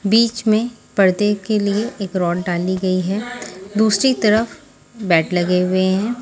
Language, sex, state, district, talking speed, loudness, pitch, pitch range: Hindi, female, Delhi, New Delhi, 155 wpm, -18 LUFS, 205 Hz, 185-220 Hz